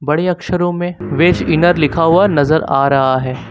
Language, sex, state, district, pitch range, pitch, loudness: Hindi, male, Uttar Pradesh, Lucknow, 140-175 Hz, 160 Hz, -14 LUFS